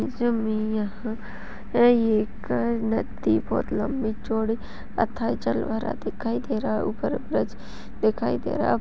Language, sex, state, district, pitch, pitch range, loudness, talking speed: Hindi, female, Uttarakhand, Uttarkashi, 220 Hz, 215-235 Hz, -26 LUFS, 150 wpm